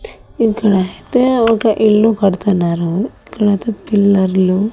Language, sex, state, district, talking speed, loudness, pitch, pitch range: Telugu, female, Andhra Pradesh, Annamaya, 90 wpm, -14 LUFS, 210 Hz, 190-225 Hz